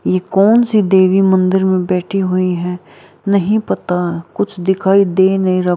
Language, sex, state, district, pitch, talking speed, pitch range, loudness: Hindi, female, Bihar, Araria, 190 Hz, 175 wpm, 185-195 Hz, -14 LUFS